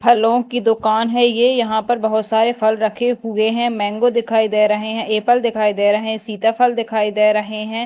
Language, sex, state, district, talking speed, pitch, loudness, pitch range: Hindi, female, Madhya Pradesh, Dhar, 215 wpm, 220 Hz, -17 LUFS, 215-240 Hz